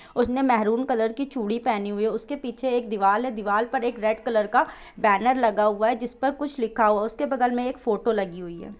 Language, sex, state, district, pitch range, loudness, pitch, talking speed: Hindi, female, Jharkhand, Jamtara, 215-255 Hz, -24 LUFS, 230 Hz, 250 wpm